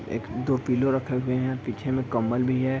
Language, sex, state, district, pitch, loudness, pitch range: Hindi, male, Bihar, East Champaran, 130 Hz, -26 LUFS, 125-130 Hz